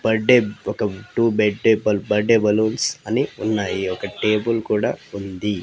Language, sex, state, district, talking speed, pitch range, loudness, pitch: Telugu, female, Andhra Pradesh, Sri Satya Sai, 140 wpm, 105-110 Hz, -20 LUFS, 105 Hz